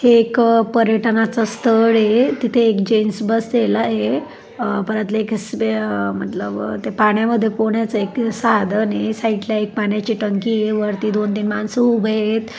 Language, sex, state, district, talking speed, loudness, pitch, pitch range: Marathi, female, Maharashtra, Dhule, 140 wpm, -18 LUFS, 220 Hz, 210-230 Hz